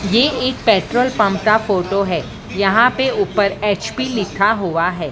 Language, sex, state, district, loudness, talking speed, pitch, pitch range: Hindi, female, Maharashtra, Mumbai Suburban, -16 LUFS, 165 wpm, 205 Hz, 190-230 Hz